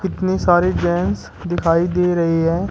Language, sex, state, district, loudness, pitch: Hindi, male, Uttar Pradesh, Shamli, -18 LUFS, 170 Hz